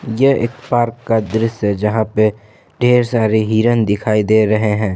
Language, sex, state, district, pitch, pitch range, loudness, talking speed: Hindi, male, Jharkhand, Ranchi, 110 Hz, 105-115 Hz, -15 LUFS, 180 wpm